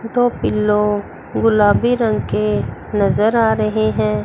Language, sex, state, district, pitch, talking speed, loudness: Hindi, female, Chandigarh, Chandigarh, 210 Hz, 125 wpm, -17 LUFS